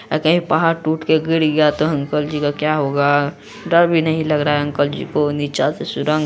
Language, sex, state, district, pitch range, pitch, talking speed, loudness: Hindi, female, Bihar, Araria, 145-160 Hz, 155 Hz, 250 wpm, -17 LUFS